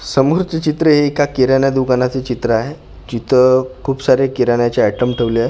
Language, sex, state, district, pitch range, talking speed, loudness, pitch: Marathi, male, Maharashtra, Gondia, 120-140 Hz, 175 wpm, -15 LUFS, 130 Hz